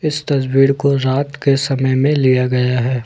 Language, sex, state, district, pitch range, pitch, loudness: Hindi, male, Jharkhand, Ranchi, 130-140 Hz, 135 Hz, -15 LUFS